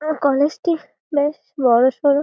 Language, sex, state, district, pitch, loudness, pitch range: Bengali, female, West Bengal, Malda, 290 Hz, -19 LUFS, 280-310 Hz